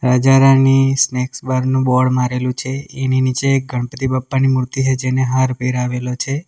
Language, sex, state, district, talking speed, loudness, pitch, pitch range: Gujarati, male, Gujarat, Valsad, 165 wpm, -16 LUFS, 130 Hz, 125-135 Hz